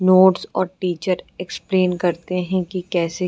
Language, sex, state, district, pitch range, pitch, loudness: Hindi, female, Uttar Pradesh, Gorakhpur, 180-185 Hz, 180 Hz, -20 LUFS